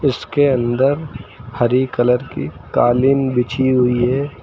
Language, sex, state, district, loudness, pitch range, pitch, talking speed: Hindi, male, Uttar Pradesh, Lucknow, -17 LUFS, 120-135 Hz, 130 Hz, 120 wpm